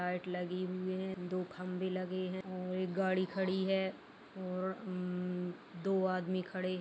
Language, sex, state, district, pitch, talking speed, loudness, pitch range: Hindi, female, Bihar, Madhepura, 185 Hz, 165 wpm, -38 LUFS, 180-190 Hz